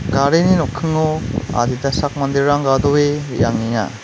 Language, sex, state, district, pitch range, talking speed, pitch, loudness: Garo, male, Meghalaya, West Garo Hills, 120-150 Hz, 105 wpm, 140 Hz, -17 LUFS